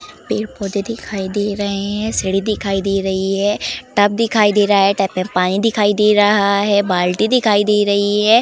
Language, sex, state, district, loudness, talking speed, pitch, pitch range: Hindi, female, Uttar Pradesh, Jalaun, -16 LUFS, 190 wpm, 205 Hz, 195-210 Hz